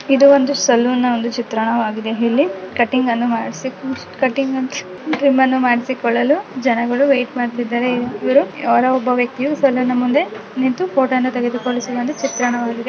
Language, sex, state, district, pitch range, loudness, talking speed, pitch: Kannada, female, Karnataka, Dakshina Kannada, 240-265 Hz, -17 LUFS, 120 wpm, 250 Hz